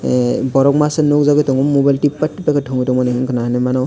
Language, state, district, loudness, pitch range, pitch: Kokborok, Tripura, West Tripura, -15 LUFS, 125-145 Hz, 135 Hz